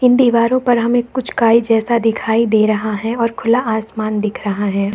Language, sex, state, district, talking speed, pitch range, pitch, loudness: Hindi, female, Bihar, Saharsa, 205 wpm, 215-240 Hz, 230 Hz, -15 LUFS